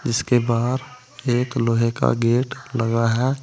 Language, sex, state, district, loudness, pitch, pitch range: Hindi, male, Uttar Pradesh, Saharanpur, -21 LUFS, 120 Hz, 115-125 Hz